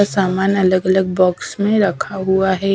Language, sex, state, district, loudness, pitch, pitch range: Hindi, female, Bihar, West Champaran, -16 LUFS, 190 Hz, 185-195 Hz